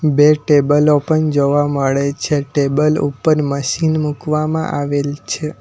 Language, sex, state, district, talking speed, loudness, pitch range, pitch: Gujarati, male, Gujarat, Valsad, 130 wpm, -16 LUFS, 140-155 Hz, 150 Hz